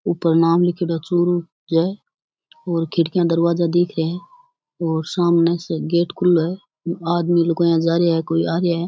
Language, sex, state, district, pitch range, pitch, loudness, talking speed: Rajasthani, female, Rajasthan, Churu, 165-175 Hz, 170 Hz, -19 LUFS, 175 wpm